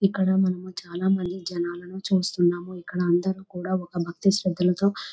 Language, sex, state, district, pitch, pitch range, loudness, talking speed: Telugu, female, Telangana, Nalgonda, 180 Hz, 175-190 Hz, -25 LUFS, 140 wpm